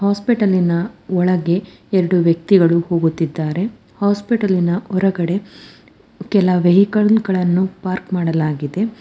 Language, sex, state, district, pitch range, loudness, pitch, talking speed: Kannada, female, Karnataka, Bangalore, 175-200 Hz, -17 LUFS, 185 Hz, 95 wpm